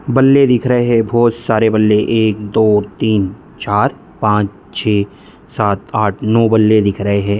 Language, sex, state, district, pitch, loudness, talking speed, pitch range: Hindi, male, Bihar, Muzaffarpur, 110 Hz, -14 LUFS, 160 wpm, 105-115 Hz